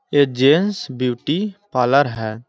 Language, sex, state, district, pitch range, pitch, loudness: Hindi, male, Bihar, East Champaran, 125-155 Hz, 140 Hz, -18 LUFS